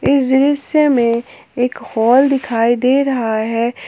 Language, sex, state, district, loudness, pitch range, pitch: Hindi, female, Jharkhand, Palamu, -15 LUFS, 235-275 Hz, 250 Hz